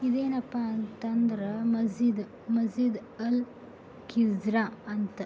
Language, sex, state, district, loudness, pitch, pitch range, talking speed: Kannada, female, Karnataka, Belgaum, -29 LUFS, 230 Hz, 215-240 Hz, 90 wpm